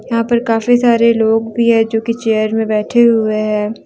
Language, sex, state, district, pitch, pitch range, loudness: Hindi, female, Jharkhand, Deoghar, 225 Hz, 220-235 Hz, -13 LUFS